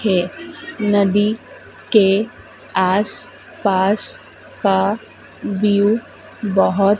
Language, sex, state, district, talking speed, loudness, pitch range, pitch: Hindi, female, Madhya Pradesh, Dhar, 70 wpm, -18 LUFS, 195-215 Hz, 205 Hz